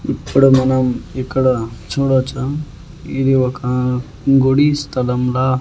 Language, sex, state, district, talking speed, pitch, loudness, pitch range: Telugu, male, Andhra Pradesh, Annamaya, 85 wpm, 130 Hz, -16 LUFS, 125-135 Hz